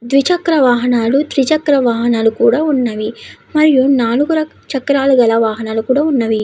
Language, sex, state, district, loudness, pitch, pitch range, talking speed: Telugu, female, Andhra Pradesh, Krishna, -13 LUFS, 260 Hz, 230-285 Hz, 140 wpm